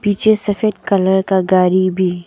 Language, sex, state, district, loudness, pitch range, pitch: Hindi, female, Arunachal Pradesh, Papum Pare, -15 LUFS, 185-205 Hz, 190 Hz